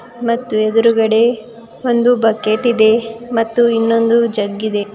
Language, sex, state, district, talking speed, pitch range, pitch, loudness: Kannada, female, Karnataka, Bidar, 110 wpm, 220-235 Hz, 230 Hz, -14 LUFS